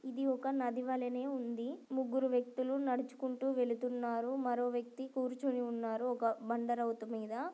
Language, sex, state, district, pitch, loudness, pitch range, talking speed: Telugu, female, Andhra Pradesh, Guntur, 250 Hz, -37 LUFS, 240-265 Hz, 190 wpm